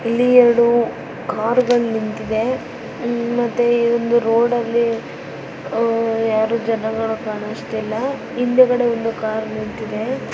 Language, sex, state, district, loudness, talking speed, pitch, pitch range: Kannada, female, Karnataka, Dharwad, -18 LUFS, 110 wpm, 230 Hz, 220-240 Hz